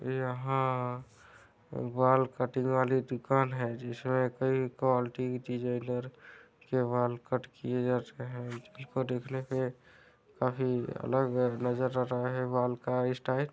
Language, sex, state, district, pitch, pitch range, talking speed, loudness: Hindi, male, Chhattisgarh, Raigarh, 125 Hz, 125-130 Hz, 135 wpm, -32 LUFS